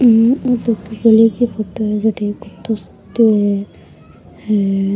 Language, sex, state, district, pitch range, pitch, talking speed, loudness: Rajasthani, female, Rajasthan, Churu, 205-230 Hz, 220 Hz, 170 wpm, -15 LUFS